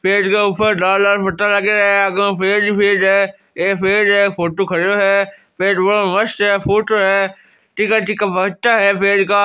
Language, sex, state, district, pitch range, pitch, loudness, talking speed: Marwari, male, Rajasthan, Nagaur, 195-205 Hz, 200 Hz, -14 LUFS, 195 wpm